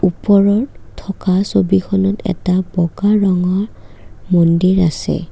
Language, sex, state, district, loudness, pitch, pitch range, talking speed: Assamese, female, Assam, Kamrup Metropolitan, -15 LUFS, 190 Hz, 180-200 Hz, 90 wpm